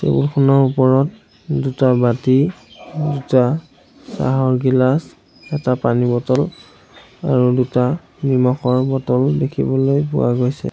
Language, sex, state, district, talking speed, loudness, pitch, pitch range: Assamese, male, Assam, Sonitpur, 100 wpm, -17 LUFS, 130 Hz, 125-140 Hz